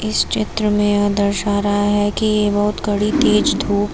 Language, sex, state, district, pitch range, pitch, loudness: Hindi, female, Uttar Pradesh, Lucknow, 205-210 Hz, 205 Hz, -17 LUFS